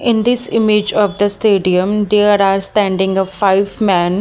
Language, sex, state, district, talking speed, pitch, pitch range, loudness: English, female, Haryana, Jhajjar, 170 wpm, 200 Hz, 195-210 Hz, -14 LUFS